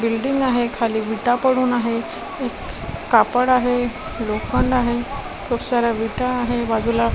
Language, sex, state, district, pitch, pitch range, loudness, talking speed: Marathi, female, Maharashtra, Washim, 240 Hz, 230-250 Hz, -20 LUFS, 145 wpm